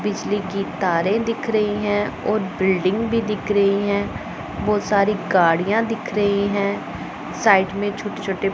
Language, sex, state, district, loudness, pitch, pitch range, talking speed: Hindi, male, Punjab, Pathankot, -21 LUFS, 205 Hz, 195-210 Hz, 155 wpm